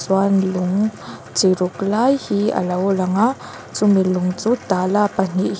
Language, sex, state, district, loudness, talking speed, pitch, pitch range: Mizo, female, Mizoram, Aizawl, -18 LUFS, 180 wpm, 195 Hz, 185-210 Hz